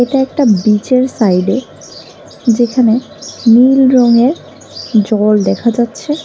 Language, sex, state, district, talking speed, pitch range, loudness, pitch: Bengali, female, Tripura, West Tripura, 95 wpm, 215-260 Hz, -11 LUFS, 235 Hz